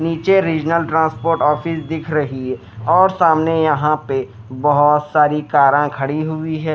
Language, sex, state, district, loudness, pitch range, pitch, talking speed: Hindi, male, Himachal Pradesh, Shimla, -16 LUFS, 145-160 Hz, 155 Hz, 150 wpm